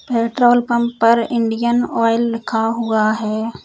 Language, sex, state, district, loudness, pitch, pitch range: Hindi, female, Uttar Pradesh, Lalitpur, -17 LUFS, 230 Hz, 225-235 Hz